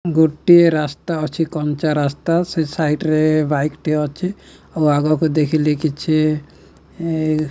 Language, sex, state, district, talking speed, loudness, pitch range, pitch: Odia, male, Odisha, Nuapada, 145 wpm, -18 LUFS, 150-160 Hz, 155 Hz